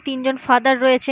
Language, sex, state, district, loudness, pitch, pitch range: Bengali, female, West Bengal, Malda, -17 LUFS, 265 Hz, 260-265 Hz